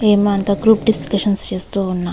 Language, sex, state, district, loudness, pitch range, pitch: Telugu, female, Andhra Pradesh, Visakhapatnam, -15 LUFS, 190-210 Hz, 200 Hz